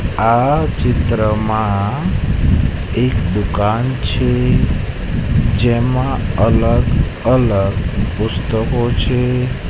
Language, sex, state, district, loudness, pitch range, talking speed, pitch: Gujarati, male, Gujarat, Gandhinagar, -16 LUFS, 105-125 Hz, 60 wpm, 115 Hz